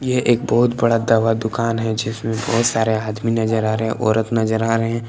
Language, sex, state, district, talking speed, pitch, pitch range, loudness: Hindi, male, Jharkhand, Palamu, 235 wpm, 115 Hz, 110-115 Hz, -18 LUFS